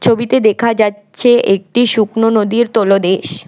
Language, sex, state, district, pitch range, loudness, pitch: Bengali, female, West Bengal, Alipurduar, 205-235 Hz, -12 LUFS, 220 Hz